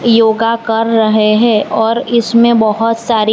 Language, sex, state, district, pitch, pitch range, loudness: Hindi, female, Gujarat, Valsad, 225 Hz, 220-230 Hz, -11 LUFS